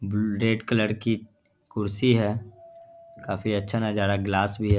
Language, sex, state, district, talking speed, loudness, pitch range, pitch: Hindi, male, Bihar, Darbhanga, 150 wpm, -26 LUFS, 100-115 Hz, 110 Hz